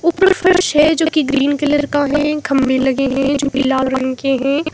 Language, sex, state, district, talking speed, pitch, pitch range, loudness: Hindi, female, Himachal Pradesh, Shimla, 230 wpm, 285 Hz, 270-300 Hz, -15 LUFS